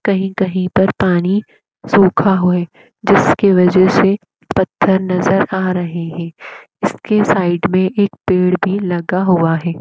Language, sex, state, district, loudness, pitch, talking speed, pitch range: Hindi, female, Uttar Pradesh, Etah, -14 LUFS, 185 Hz, 145 wpm, 180-195 Hz